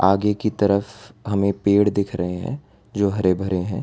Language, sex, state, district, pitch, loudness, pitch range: Hindi, male, Gujarat, Valsad, 100 Hz, -21 LUFS, 95-105 Hz